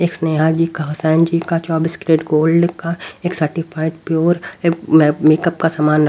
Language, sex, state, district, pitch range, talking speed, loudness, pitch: Hindi, male, Haryana, Rohtak, 155-170 Hz, 165 wpm, -16 LUFS, 165 Hz